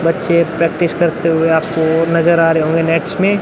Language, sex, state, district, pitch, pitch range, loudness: Hindi, male, Uttar Pradesh, Muzaffarnagar, 165 Hz, 165-170 Hz, -14 LUFS